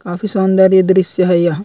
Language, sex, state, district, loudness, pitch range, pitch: Hindi, female, Chhattisgarh, Korba, -12 LUFS, 175-190 Hz, 190 Hz